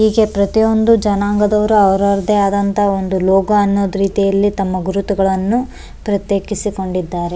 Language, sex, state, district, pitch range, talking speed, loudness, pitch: Kannada, male, Karnataka, Bellary, 195-210 Hz, 100 wpm, -15 LUFS, 200 Hz